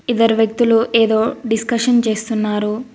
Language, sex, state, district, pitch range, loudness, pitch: Telugu, female, Telangana, Mahabubabad, 220-235 Hz, -16 LUFS, 225 Hz